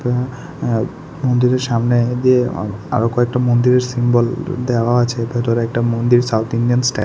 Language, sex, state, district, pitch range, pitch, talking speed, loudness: Bengali, male, Tripura, West Tripura, 115-125 Hz, 120 Hz, 145 wpm, -17 LUFS